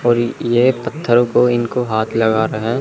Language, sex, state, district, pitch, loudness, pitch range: Hindi, male, Chandigarh, Chandigarh, 120 Hz, -16 LUFS, 110-120 Hz